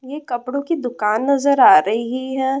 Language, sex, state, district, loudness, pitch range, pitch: Hindi, female, West Bengal, Purulia, -17 LUFS, 240-280 Hz, 260 Hz